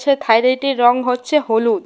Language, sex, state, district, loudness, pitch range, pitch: Bengali, female, Tripura, West Tripura, -15 LUFS, 240-280 Hz, 255 Hz